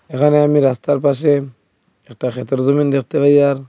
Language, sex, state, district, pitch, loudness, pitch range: Bengali, male, Assam, Hailakandi, 140 Hz, -15 LUFS, 130-145 Hz